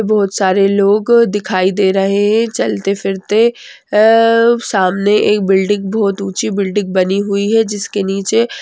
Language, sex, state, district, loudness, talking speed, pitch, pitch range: Hindi, female, West Bengal, Kolkata, -13 LUFS, 140 wpm, 205 Hz, 195-220 Hz